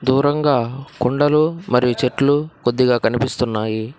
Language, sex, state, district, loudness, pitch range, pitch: Telugu, male, Telangana, Hyderabad, -18 LUFS, 125-145 Hz, 130 Hz